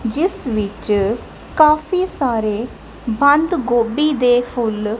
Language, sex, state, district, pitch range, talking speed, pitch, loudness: Punjabi, female, Punjab, Kapurthala, 225-300 Hz, 95 wpm, 245 Hz, -17 LUFS